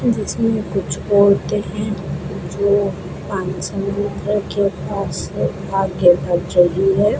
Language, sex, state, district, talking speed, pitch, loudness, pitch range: Hindi, female, Rajasthan, Bikaner, 65 wpm, 195 Hz, -18 LUFS, 185-205 Hz